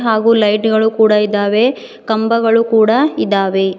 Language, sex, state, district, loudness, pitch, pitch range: Kannada, female, Karnataka, Bidar, -13 LUFS, 220 Hz, 210-230 Hz